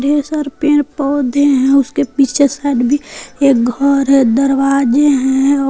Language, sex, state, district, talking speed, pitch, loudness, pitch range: Hindi, female, Jharkhand, Palamu, 160 wpm, 275 Hz, -13 LUFS, 270-285 Hz